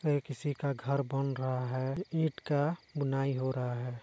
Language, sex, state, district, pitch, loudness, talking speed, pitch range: Hindi, male, Chhattisgarh, Balrampur, 140 Hz, -34 LUFS, 195 wpm, 130-145 Hz